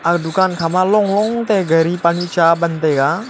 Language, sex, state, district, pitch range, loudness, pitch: Wancho, male, Arunachal Pradesh, Longding, 165-195 Hz, -15 LUFS, 175 Hz